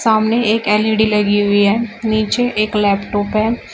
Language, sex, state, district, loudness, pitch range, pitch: Hindi, female, Uttar Pradesh, Shamli, -15 LUFS, 205-225 Hz, 215 Hz